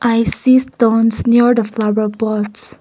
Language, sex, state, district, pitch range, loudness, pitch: English, female, Nagaland, Kohima, 215-240 Hz, -14 LUFS, 230 Hz